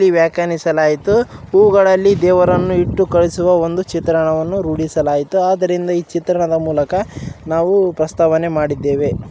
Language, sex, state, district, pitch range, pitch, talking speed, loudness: Kannada, male, Karnataka, Raichur, 160-185 Hz, 170 Hz, 95 wpm, -15 LUFS